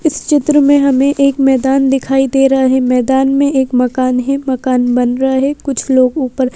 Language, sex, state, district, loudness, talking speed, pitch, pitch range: Hindi, female, Madhya Pradesh, Bhopal, -12 LUFS, 200 wpm, 270 Hz, 255-275 Hz